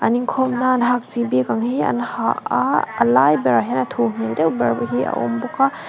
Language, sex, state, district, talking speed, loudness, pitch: Mizo, female, Mizoram, Aizawl, 255 wpm, -19 LUFS, 190 Hz